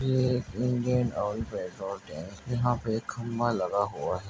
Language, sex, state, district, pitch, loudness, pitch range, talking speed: Hindi, male, Bihar, Begusarai, 115 Hz, -30 LUFS, 100-125 Hz, 180 wpm